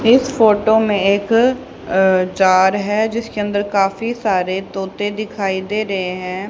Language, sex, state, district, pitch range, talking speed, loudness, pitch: Hindi, female, Haryana, Charkhi Dadri, 190-220 Hz, 150 wpm, -16 LUFS, 205 Hz